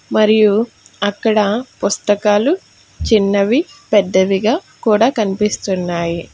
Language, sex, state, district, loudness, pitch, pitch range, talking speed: Telugu, female, Telangana, Hyderabad, -15 LUFS, 210 Hz, 200-220 Hz, 65 wpm